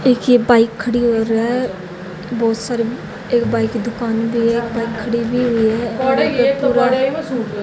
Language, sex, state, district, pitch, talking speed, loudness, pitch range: Hindi, female, Haryana, Jhajjar, 235 Hz, 180 wpm, -17 LUFS, 225-245 Hz